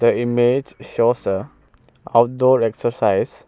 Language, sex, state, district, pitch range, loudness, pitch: English, male, Arunachal Pradesh, Papum Pare, 115-125 Hz, -18 LUFS, 120 Hz